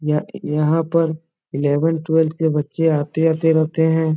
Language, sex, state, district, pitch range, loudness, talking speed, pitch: Hindi, male, Bihar, Supaul, 150-165 Hz, -19 LUFS, 145 wpm, 160 Hz